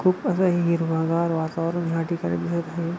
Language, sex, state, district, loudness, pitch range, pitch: Marathi, male, Maharashtra, Pune, -24 LUFS, 165-170 Hz, 170 Hz